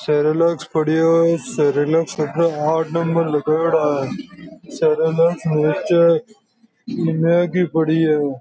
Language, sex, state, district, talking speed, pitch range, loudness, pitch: Marwari, male, Rajasthan, Nagaur, 100 wpm, 150-170 Hz, -18 LUFS, 165 Hz